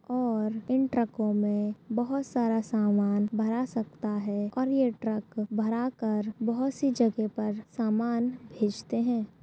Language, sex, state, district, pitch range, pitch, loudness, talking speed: Hindi, female, Chhattisgarh, Bastar, 215-240 Hz, 225 Hz, -29 LUFS, 140 wpm